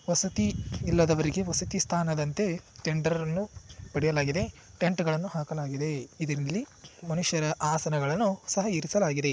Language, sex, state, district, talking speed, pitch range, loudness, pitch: Kannada, male, Karnataka, Shimoga, 95 wpm, 150-180 Hz, -29 LUFS, 160 Hz